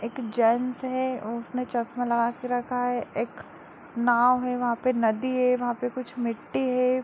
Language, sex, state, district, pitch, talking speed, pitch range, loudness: Hindi, female, Bihar, Darbhanga, 245 Hz, 180 wpm, 235-250 Hz, -26 LUFS